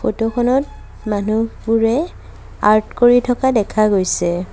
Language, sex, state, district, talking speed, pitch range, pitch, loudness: Assamese, female, Assam, Sonitpur, 105 wpm, 210-245 Hz, 225 Hz, -16 LUFS